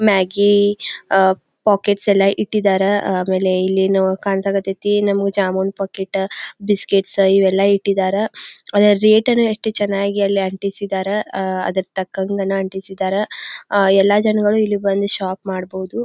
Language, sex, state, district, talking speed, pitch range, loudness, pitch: Kannada, female, Karnataka, Belgaum, 125 wpm, 190-205 Hz, -17 LUFS, 195 Hz